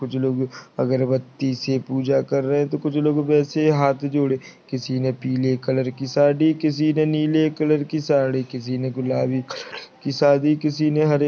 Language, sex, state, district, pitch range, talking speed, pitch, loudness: Hindi, male, Chhattisgarh, Kabirdham, 130-150 Hz, 190 wpm, 140 Hz, -21 LUFS